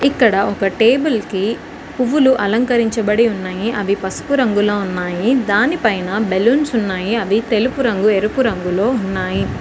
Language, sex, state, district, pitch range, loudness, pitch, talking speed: Telugu, female, Telangana, Mahabubabad, 195-240 Hz, -16 LUFS, 215 Hz, 125 wpm